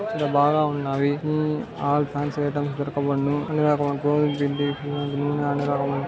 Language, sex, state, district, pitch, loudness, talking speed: Telugu, male, Karnataka, Dharwad, 145 Hz, -24 LUFS, 120 wpm